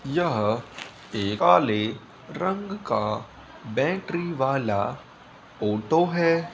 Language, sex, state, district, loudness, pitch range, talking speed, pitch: Hindi, male, Bihar, Saharsa, -25 LUFS, 105-175 Hz, 85 wpm, 150 Hz